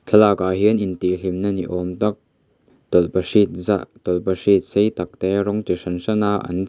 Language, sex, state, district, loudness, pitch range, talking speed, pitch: Mizo, male, Mizoram, Aizawl, -20 LUFS, 90-105 Hz, 160 wpm, 95 Hz